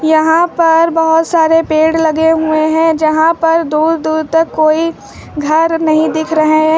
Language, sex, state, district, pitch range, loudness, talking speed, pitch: Hindi, female, Uttar Pradesh, Lucknow, 315-325 Hz, -11 LUFS, 170 wpm, 320 Hz